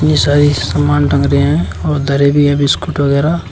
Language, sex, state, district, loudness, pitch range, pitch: Hindi, male, Uttar Pradesh, Shamli, -12 LUFS, 125-145 Hz, 140 Hz